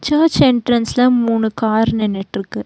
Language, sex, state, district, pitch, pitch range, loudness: Tamil, female, Tamil Nadu, Nilgiris, 230 Hz, 215-250 Hz, -15 LUFS